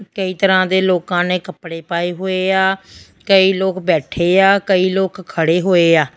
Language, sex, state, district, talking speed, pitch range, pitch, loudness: Punjabi, female, Punjab, Fazilka, 175 wpm, 175-190 Hz, 185 Hz, -15 LUFS